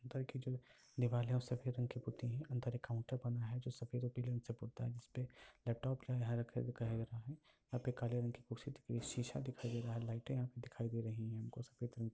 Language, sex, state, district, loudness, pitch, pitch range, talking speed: Hindi, male, Bihar, Lakhisarai, -44 LUFS, 120 Hz, 120-125 Hz, 250 wpm